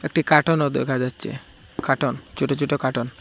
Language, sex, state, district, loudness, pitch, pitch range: Bengali, male, Assam, Hailakandi, -22 LUFS, 140 Hz, 130-150 Hz